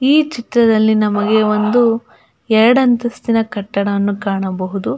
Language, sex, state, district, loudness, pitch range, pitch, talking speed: Kannada, female, Karnataka, Belgaum, -15 LUFS, 205-240 Hz, 220 Hz, 85 wpm